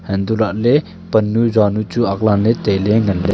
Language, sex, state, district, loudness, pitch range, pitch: Wancho, male, Arunachal Pradesh, Longding, -16 LUFS, 100-115 Hz, 110 Hz